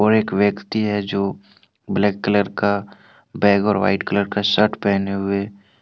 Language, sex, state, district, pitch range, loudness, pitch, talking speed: Hindi, male, Jharkhand, Deoghar, 100-105 Hz, -19 LUFS, 100 Hz, 155 wpm